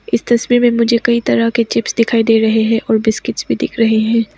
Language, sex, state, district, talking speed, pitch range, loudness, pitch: Hindi, female, Arunachal Pradesh, Papum Pare, 245 wpm, 225-235 Hz, -14 LUFS, 230 Hz